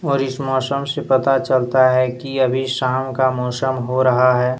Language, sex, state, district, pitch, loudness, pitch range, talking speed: Hindi, male, Jharkhand, Deoghar, 130 Hz, -18 LUFS, 130-135 Hz, 195 wpm